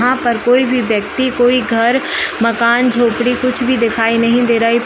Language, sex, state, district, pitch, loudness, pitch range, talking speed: Hindi, female, Chhattisgarh, Rajnandgaon, 240 Hz, -13 LUFS, 230-250 Hz, 195 wpm